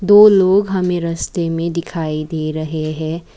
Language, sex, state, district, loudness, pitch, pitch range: Hindi, female, Assam, Kamrup Metropolitan, -16 LUFS, 165 Hz, 155-185 Hz